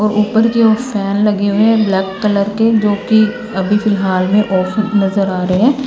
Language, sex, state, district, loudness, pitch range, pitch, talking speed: Hindi, female, Himachal Pradesh, Shimla, -13 LUFS, 195-220 Hz, 210 Hz, 205 wpm